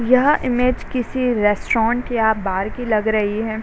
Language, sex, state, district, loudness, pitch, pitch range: Hindi, female, Bihar, Sitamarhi, -19 LUFS, 225 Hz, 215-250 Hz